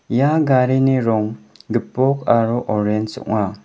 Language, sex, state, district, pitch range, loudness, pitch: Garo, male, Meghalaya, West Garo Hills, 110-130 Hz, -18 LUFS, 115 Hz